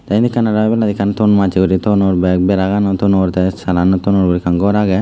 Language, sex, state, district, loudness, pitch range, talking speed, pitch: Chakma, male, Tripura, Dhalai, -14 LUFS, 95-105 Hz, 190 wpm, 100 Hz